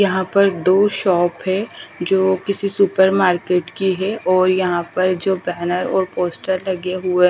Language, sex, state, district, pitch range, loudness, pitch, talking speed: Hindi, female, Haryana, Charkhi Dadri, 180-195 Hz, -18 LUFS, 185 Hz, 165 wpm